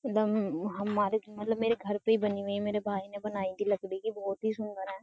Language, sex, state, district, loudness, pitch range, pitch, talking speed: Hindi, female, Uttar Pradesh, Jyotiba Phule Nagar, -32 LUFS, 200-215 Hz, 205 Hz, 250 wpm